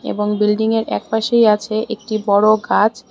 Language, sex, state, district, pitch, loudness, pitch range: Bengali, female, Tripura, West Tripura, 215 Hz, -16 LUFS, 210-225 Hz